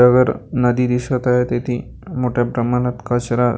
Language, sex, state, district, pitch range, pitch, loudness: Marathi, male, Maharashtra, Gondia, 120-125 Hz, 125 Hz, -18 LUFS